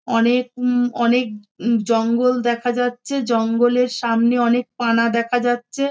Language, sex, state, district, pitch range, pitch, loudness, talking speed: Bengali, female, West Bengal, Kolkata, 230-245 Hz, 240 Hz, -19 LUFS, 140 wpm